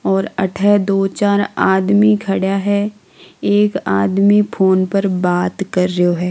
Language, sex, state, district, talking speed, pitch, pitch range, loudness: Marwari, female, Rajasthan, Nagaur, 145 wpm, 195 Hz, 185-205 Hz, -15 LUFS